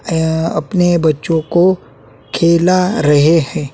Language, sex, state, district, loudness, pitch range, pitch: Hindi, male, Uttarakhand, Tehri Garhwal, -13 LUFS, 150-175 Hz, 165 Hz